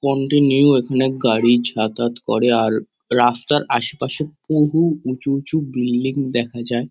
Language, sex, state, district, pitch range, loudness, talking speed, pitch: Bengali, male, West Bengal, Kolkata, 120-140 Hz, -18 LUFS, 120 wpm, 130 Hz